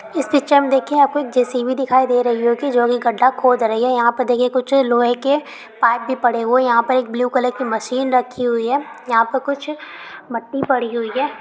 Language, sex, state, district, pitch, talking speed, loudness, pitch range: Hindi, female, Bihar, Kishanganj, 250 Hz, 220 wpm, -17 LUFS, 240-275 Hz